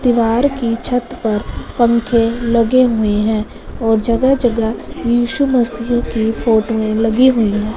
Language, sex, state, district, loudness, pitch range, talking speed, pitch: Hindi, female, Punjab, Fazilka, -15 LUFS, 225-245 Hz, 140 wpm, 235 Hz